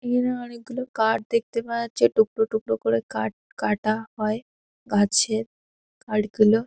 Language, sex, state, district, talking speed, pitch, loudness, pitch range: Bengali, female, West Bengal, Paschim Medinipur, 125 wpm, 220 Hz, -24 LUFS, 210-235 Hz